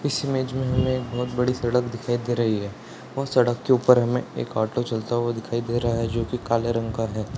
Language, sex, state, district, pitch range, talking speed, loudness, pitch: Hindi, male, Bihar, Purnia, 115-125 Hz, 250 wpm, -24 LUFS, 120 Hz